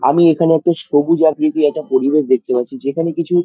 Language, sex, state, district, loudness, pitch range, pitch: Bengali, male, West Bengal, Dakshin Dinajpur, -15 LUFS, 140-165 Hz, 155 Hz